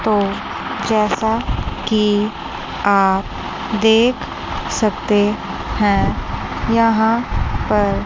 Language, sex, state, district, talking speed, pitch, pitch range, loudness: Hindi, female, Chandigarh, Chandigarh, 65 wpm, 215 Hz, 205-225 Hz, -18 LUFS